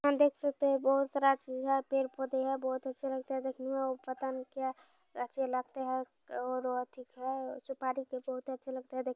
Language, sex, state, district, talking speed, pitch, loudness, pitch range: Hindi, female, Bihar, Araria, 155 wpm, 265 Hz, -35 LUFS, 255-270 Hz